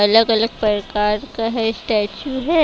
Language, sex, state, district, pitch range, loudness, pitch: Hindi, female, Himachal Pradesh, Shimla, 210-230 Hz, -19 LUFS, 225 Hz